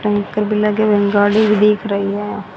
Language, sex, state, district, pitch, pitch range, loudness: Hindi, female, Haryana, Rohtak, 210 Hz, 205-210 Hz, -15 LUFS